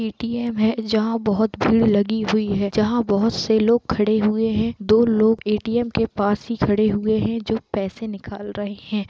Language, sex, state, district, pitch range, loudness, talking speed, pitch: Hindi, male, Jharkhand, Jamtara, 210-225 Hz, -20 LUFS, 190 wpm, 220 Hz